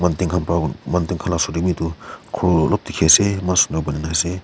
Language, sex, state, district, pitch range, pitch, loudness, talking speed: Nagamese, male, Nagaland, Kohima, 80-90 Hz, 90 Hz, -18 LUFS, 135 wpm